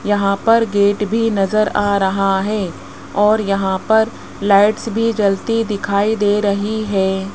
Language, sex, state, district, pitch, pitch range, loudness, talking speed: Hindi, male, Rajasthan, Jaipur, 205 Hz, 195-220 Hz, -16 LUFS, 145 wpm